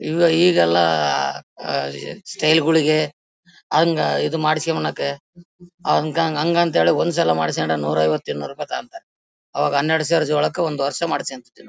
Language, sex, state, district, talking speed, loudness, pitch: Kannada, male, Karnataka, Bellary, 125 wpm, -19 LUFS, 155 Hz